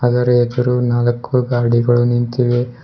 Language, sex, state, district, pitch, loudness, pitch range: Kannada, male, Karnataka, Bidar, 120 Hz, -16 LUFS, 120-125 Hz